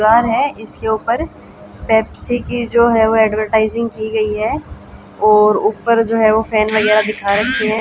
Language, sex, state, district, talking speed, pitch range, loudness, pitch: Hindi, female, Haryana, Jhajjar, 175 wpm, 215-230 Hz, -15 LUFS, 220 Hz